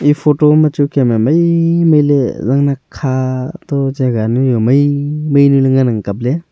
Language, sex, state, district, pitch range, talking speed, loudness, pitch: Wancho, male, Arunachal Pradesh, Longding, 130-150 Hz, 230 wpm, -13 LUFS, 140 Hz